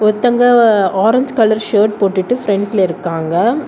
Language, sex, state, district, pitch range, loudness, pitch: Tamil, female, Tamil Nadu, Kanyakumari, 195-240 Hz, -13 LUFS, 215 Hz